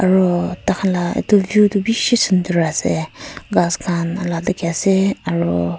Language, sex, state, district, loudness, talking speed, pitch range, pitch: Nagamese, female, Nagaland, Kohima, -17 LUFS, 155 wpm, 170-195 Hz, 180 Hz